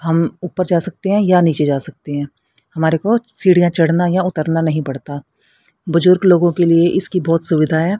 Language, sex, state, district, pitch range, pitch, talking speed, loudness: Hindi, female, Haryana, Rohtak, 160-180 Hz, 170 Hz, 195 wpm, -15 LUFS